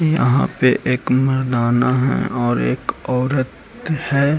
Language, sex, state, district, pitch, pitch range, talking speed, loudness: Hindi, male, Bihar, Gaya, 130 Hz, 125-140 Hz, 125 wpm, -18 LUFS